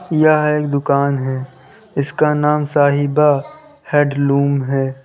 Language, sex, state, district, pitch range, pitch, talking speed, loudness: Hindi, male, Uttar Pradesh, Lalitpur, 140-150 Hz, 145 Hz, 95 wpm, -16 LUFS